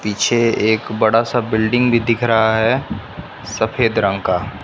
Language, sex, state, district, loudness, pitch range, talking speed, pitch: Hindi, male, Bihar, West Champaran, -16 LUFS, 110-120 Hz, 155 wpm, 110 Hz